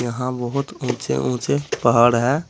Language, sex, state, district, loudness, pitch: Hindi, male, Uttar Pradesh, Saharanpur, -20 LUFS, 120 Hz